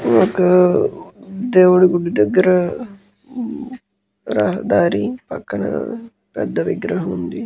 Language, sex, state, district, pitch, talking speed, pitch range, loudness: Telugu, male, Andhra Pradesh, Guntur, 195 Hz, 65 wpm, 180-240 Hz, -17 LUFS